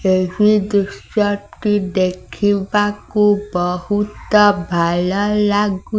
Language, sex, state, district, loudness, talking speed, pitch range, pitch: Odia, female, Odisha, Sambalpur, -17 LUFS, 80 wpm, 185-210 Hz, 205 Hz